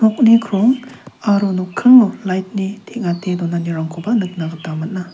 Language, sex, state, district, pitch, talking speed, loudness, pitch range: Garo, male, Meghalaya, South Garo Hills, 195 Hz, 130 wpm, -16 LUFS, 175-225 Hz